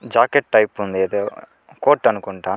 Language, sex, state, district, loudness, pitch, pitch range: Telugu, male, Andhra Pradesh, Chittoor, -18 LUFS, 100 Hz, 95-110 Hz